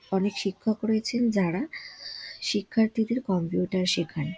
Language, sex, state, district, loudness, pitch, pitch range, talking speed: Bengali, female, West Bengal, Dakshin Dinajpur, -27 LUFS, 200 Hz, 180-220 Hz, 110 wpm